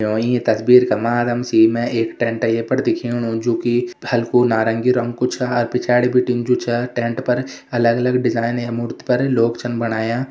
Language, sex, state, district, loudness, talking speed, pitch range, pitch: Hindi, male, Uttarakhand, Tehri Garhwal, -18 LUFS, 200 wpm, 115-125 Hz, 120 Hz